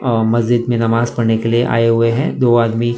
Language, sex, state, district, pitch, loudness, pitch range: Hindi, male, Maharashtra, Mumbai Suburban, 115 Hz, -15 LUFS, 115-120 Hz